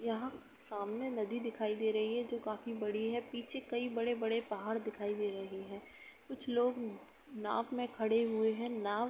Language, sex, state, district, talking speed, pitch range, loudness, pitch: Hindi, female, Uttar Pradesh, Etah, 200 wpm, 215-240 Hz, -38 LUFS, 230 Hz